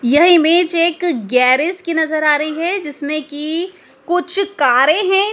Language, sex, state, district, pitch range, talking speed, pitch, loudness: Hindi, female, Madhya Pradesh, Dhar, 295-355 Hz, 155 wpm, 320 Hz, -15 LUFS